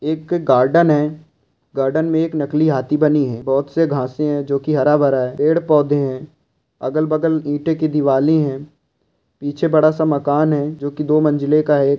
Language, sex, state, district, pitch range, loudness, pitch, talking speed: Hindi, male, Rajasthan, Churu, 140-155 Hz, -17 LUFS, 150 Hz, 185 wpm